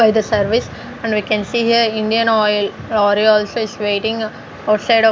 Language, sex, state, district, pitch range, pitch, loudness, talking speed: English, female, Punjab, Fazilka, 210-225 Hz, 220 Hz, -16 LUFS, 175 wpm